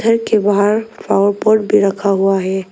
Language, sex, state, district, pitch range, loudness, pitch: Hindi, female, Arunachal Pradesh, Lower Dibang Valley, 195-215 Hz, -14 LUFS, 205 Hz